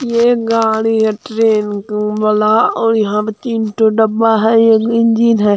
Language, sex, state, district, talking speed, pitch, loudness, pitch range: Hindi, female, Bihar, Sitamarhi, 160 wpm, 220 Hz, -13 LUFS, 215-225 Hz